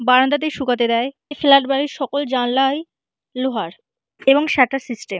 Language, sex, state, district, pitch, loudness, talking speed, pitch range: Bengali, female, West Bengal, Purulia, 270 Hz, -18 LUFS, 150 wpm, 250-280 Hz